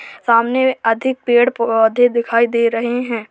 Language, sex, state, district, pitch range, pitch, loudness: Hindi, female, Uttar Pradesh, Hamirpur, 230-245 Hz, 235 Hz, -15 LUFS